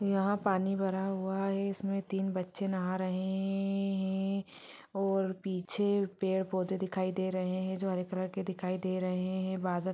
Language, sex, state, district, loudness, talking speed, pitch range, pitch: Hindi, female, Chhattisgarh, Sarguja, -33 LUFS, 195 wpm, 185-195 Hz, 190 Hz